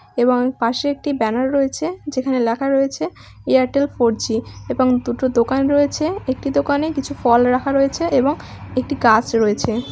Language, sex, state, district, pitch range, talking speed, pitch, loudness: Bengali, female, West Bengal, Malda, 240-285 Hz, 155 wpm, 260 Hz, -18 LUFS